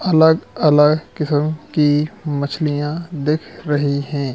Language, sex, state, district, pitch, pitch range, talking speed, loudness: Hindi, male, Madhya Pradesh, Katni, 150 Hz, 145-155 Hz, 110 wpm, -18 LUFS